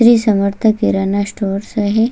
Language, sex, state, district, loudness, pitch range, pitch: Marathi, female, Maharashtra, Solapur, -15 LUFS, 200-220 Hz, 210 Hz